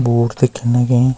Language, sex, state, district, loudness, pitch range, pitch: Garhwali, male, Uttarakhand, Uttarkashi, -16 LUFS, 120-125 Hz, 125 Hz